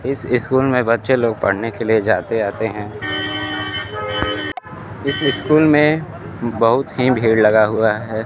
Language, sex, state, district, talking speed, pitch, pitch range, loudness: Hindi, male, Bihar, Kaimur, 145 wpm, 110 Hz, 105-130 Hz, -17 LUFS